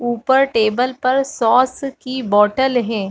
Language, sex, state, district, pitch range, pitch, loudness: Hindi, female, Chhattisgarh, Bastar, 225-260 Hz, 250 Hz, -16 LUFS